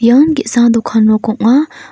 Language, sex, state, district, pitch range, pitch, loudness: Garo, female, Meghalaya, North Garo Hills, 225-295 Hz, 235 Hz, -11 LUFS